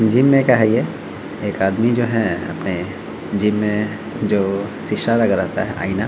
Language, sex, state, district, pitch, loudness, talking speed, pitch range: Hindi, male, Bihar, Vaishali, 105 Hz, -19 LUFS, 190 wpm, 100-115 Hz